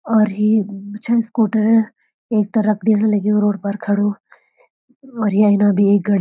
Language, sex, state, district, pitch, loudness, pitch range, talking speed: Garhwali, female, Uttarakhand, Uttarkashi, 210 Hz, -17 LUFS, 205-220 Hz, 155 wpm